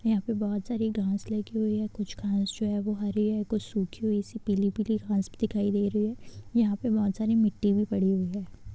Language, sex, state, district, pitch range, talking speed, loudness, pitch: Hindi, female, Uttar Pradesh, Hamirpur, 200-220 Hz, 245 wpm, -29 LUFS, 210 Hz